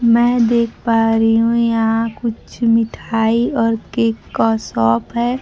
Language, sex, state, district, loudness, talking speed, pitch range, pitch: Hindi, female, Bihar, Kaimur, -16 LUFS, 145 wpm, 225-235 Hz, 230 Hz